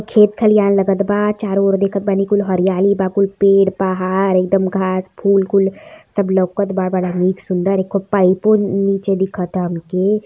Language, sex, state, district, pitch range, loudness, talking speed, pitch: Hindi, female, Uttar Pradesh, Varanasi, 190-200 Hz, -16 LUFS, 165 wpm, 195 Hz